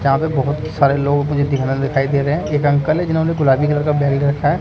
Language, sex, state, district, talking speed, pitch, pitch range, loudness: Hindi, male, Delhi, New Delhi, 285 wpm, 145 Hz, 140-150 Hz, -17 LUFS